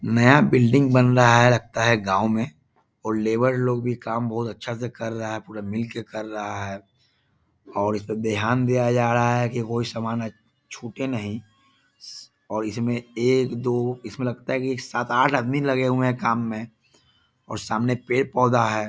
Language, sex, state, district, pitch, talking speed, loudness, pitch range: Hindi, male, Bihar, East Champaran, 120 Hz, 180 wpm, -22 LUFS, 110-125 Hz